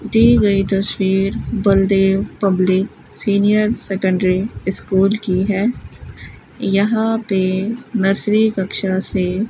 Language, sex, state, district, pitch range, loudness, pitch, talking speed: Hindi, female, Rajasthan, Bikaner, 190-215 Hz, -16 LUFS, 195 Hz, 100 wpm